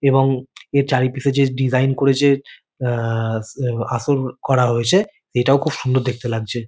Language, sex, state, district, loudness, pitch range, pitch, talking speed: Bengali, male, West Bengal, Kolkata, -19 LUFS, 120-140 Hz, 130 Hz, 155 wpm